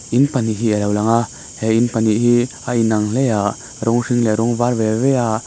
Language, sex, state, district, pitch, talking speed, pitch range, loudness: Mizo, male, Mizoram, Aizawl, 115 Hz, 250 wpm, 110-120 Hz, -17 LUFS